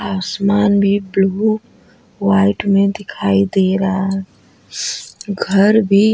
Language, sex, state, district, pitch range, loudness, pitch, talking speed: Hindi, female, Bihar, Vaishali, 190-205 Hz, -16 LUFS, 195 Hz, 115 wpm